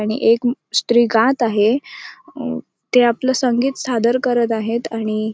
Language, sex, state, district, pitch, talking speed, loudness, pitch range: Marathi, female, Maharashtra, Sindhudurg, 235 Hz, 155 wpm, -17 LUFS, 225-255 Hz